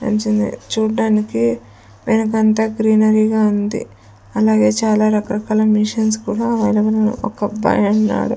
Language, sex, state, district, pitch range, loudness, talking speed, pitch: Telugu, female, Andhra Pradesh, Sri Satya Sai, 205-220 Hz, -16 LUFS, 95 wpm, 215 Hz